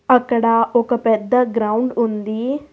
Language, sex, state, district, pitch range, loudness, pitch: Telugu, female, Telangana, Hyderabad, 225-250 Hz, -17 LUFS, 235 Hz